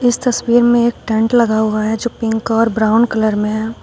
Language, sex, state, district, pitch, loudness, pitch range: Hindi, female, Uttar Pradesh, Shamli, 225 Hz, -15 LUFS, 220-240 Hz